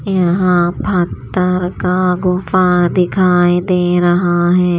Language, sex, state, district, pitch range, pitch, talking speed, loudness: Hindi, female, Maharashtra, Washim, 175-180 Hz, 180 Hz, 100 wpm, -14 LUFS